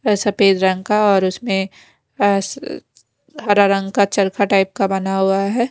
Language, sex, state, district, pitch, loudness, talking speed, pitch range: Hindi, female, Bihar, West Champaran, 200 Hz, -17 LUFS, 160 wpm, 195-210 Hz